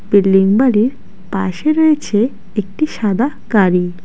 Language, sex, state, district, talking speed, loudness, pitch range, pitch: Bengali, female, West Bengal, Alipurduar, 105 wpm, -15 LUFS, 195-255 Hz, 210 Hz